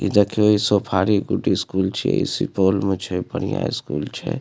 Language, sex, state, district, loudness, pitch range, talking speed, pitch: Maithili, male, Bihar, Supaul, -21 LUFS, 95-105 Hz, 165 wpm, 100 Hz